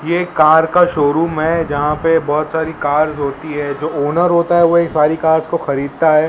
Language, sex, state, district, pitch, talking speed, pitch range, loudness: Hindi, male, Maharashtra, Mumbai Suburban, 160 Hz, 230 wpm, 150-165 Hz, -14 LUFS